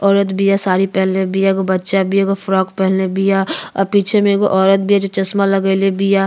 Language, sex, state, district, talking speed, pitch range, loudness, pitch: Bhojpuri, female, Uttar Pradesh, Ghazipur, 210 wpm, 190-195 Hz, -15 LUFS, 195 Hz